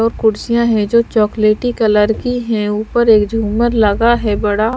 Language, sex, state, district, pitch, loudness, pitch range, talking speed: Hindi, female, Bihar, Patna, 220 Hz, -14 LUFS, 210-235 Hz, 175 wpm